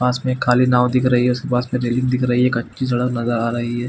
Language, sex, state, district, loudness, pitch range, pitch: Hindi, male, Chhattisgarh, Bilaspur, -18 LUFS, 120-125 Hz, 125 Hz